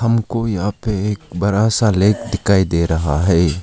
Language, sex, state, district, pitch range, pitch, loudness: Hindi, male, Arunachal Pradesh, Lower Dibang Valley, 90-110 Hz, 100 Hz, -17 LUFS